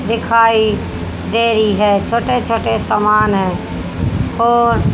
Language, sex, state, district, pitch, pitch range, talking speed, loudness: Hindi, female, Haryana, Jhajjar, 215 Hz, 200-230 Hz, 110 wpm, -15 LUFS